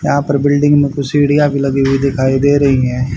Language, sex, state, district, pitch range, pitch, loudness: Hindi, male, Haryana, Charkhi Dadri, 135-145 Hz, 140 Hz, -13 LUFS